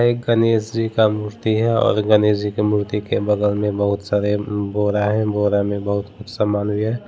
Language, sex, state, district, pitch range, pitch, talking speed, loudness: Hindi, male, Bihar, Muzaffarpur, 105-110 Hz, 105 Hz, 210 wpm, -19 LUFS